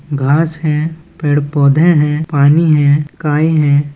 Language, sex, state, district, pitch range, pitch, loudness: Chhattisgarhi, male, Chhattisgarh, Balrampur, 145-160 Hz, 150 Hz, -12 LUFS